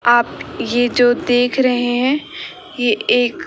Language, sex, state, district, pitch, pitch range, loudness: Hindi, female, Rajasthan, Bikaner, 245 Hz, 240-255 Hz, -16 LUFS